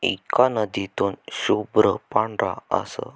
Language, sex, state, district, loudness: Marathi, male, Maharashtra, Sindhudurg, -23 LUFS